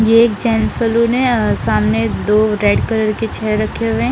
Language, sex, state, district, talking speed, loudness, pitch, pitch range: Hindi, female, Bihar, Patna, 220 wpm, -15 LUFS, 220 Hz, 210-230 Hz